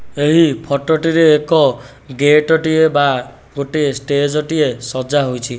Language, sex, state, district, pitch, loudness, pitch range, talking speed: Odia, male, Odisha, Nuapada, 145 Hz, -14 LUFS, 135-160 Hz, 120 wpm